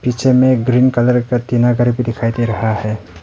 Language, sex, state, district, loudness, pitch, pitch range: Hindi, male, Arunachal Pradesh, Papum Pare, -15 LUFS, 120 Hz, 115-125 Hz